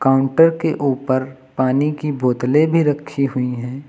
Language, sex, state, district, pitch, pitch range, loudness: Hindi, male, Uttar Pradesh, Lucknow, 135 Hz, 130-150 Hz, -18 LUFS